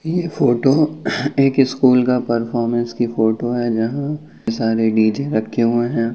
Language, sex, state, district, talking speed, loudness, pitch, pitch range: Hindi, male, Uttar Pradesh, Ghazipur, 145 wpm, -18 LUFS, 120 Hz, 115-140 Hz